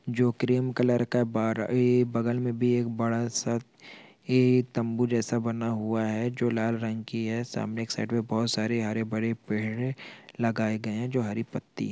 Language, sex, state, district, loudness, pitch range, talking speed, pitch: Hindi, male, Chhattisgarh, Balrampur, -28 LUFS, 110-120 Hz, 180 wpm, 115 Hz